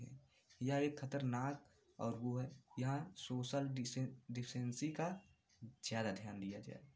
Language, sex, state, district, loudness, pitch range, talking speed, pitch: Hindi, male, Uttar Pradesh, Varanasi, -44 LUFS, 120-140 Hz, 120 wpm, 125 Hz